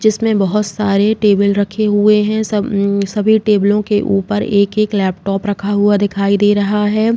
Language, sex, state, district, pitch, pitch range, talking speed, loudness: Hindi, female, Uttar Pradesh, Jalaun, 205 Hz, 200-210 Hz, 175 wpm, -14 LUFS